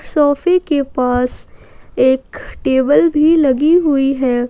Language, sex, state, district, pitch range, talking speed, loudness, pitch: Hindi, female, Jharkhand, Ranchi, 260-305 Hz, 120 wpm, -14 LUFS, 275 Hz